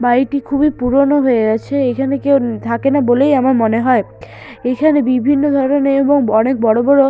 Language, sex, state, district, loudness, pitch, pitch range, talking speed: Bengali, female, West Bengal, Malda, -14 LUFS, 270 Hz, 245-280 Hz, 160 wpm